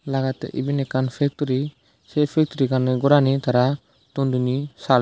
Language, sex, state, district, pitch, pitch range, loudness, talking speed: Chakma, male, Tripura, Dhalai, 135 Hz, 130-145 Hz, -22 LUFS, 145 wpm